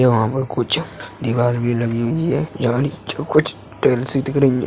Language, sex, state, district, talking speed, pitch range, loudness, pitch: Hindi, male, Uttar Pradesh, Hamirpur, 205 wpm, 120-135 Hz, -19 LUFS, 125 Hz